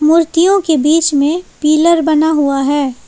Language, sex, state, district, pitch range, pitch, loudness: Hindi, female, Jharkhand, Palamu, 290-330 Hz, 310 Hz, -12 LUFS